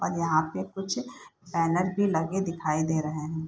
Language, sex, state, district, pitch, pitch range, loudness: Hindi, female, Bihar, Saharsa, 165 Hz, 155-190 Hz, -28 LUFS